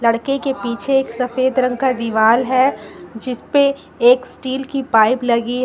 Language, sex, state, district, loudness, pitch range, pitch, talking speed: Hindi, female, Jharkhand, Garhwa, -17 LUFS, 235-270 Hz, 255 Hz, 170 wpm